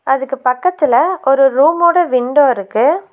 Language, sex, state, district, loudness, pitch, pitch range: Tamil, female, Tamil Nadu, Nilgiris, -13 LUFS, 270 Hz, 260-340 Hz